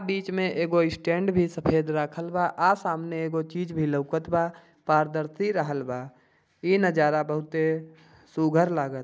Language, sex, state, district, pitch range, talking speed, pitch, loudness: Bhojpuri, male, Bihar, Gopalganj, 155-170 Hz, 160 wpm, 160 Hz, -26 LUFS